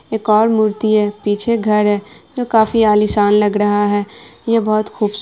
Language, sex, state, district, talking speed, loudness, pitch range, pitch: Hindi, female, Bihar, Araria, 195 wpm, -15 LUFS, 205-220 Hz, 215 Hz